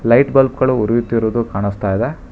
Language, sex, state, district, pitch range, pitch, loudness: Kannada, male, Karnataka, Bangalore, 105-130 Hz, 115 Hz, -16 LUFS